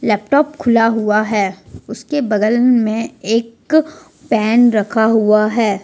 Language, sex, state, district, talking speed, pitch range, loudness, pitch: Hindi, female, Jharkhand, Ranchi, 125 wpm, 215-240 Hz, -15 LUFS, 225 Hz